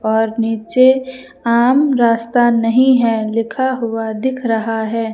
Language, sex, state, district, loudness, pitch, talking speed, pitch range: Hindi, female, Uttar Pradesh, Lucknow, -15 LUFS, 230 Hz, 130 wpm, 225-255 Hz